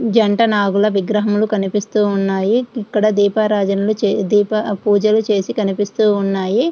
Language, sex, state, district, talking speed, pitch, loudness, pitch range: Telugu, female, Andhra Pradesh, Srikakulam, 100 wpm, 210 Hz, -16 LUFS, 200-215 Hz